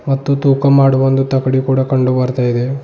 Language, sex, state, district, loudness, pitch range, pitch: Kannada, male, Karnataka, Bidar, -13 LUFS, 130-135 Hz, 135 Hz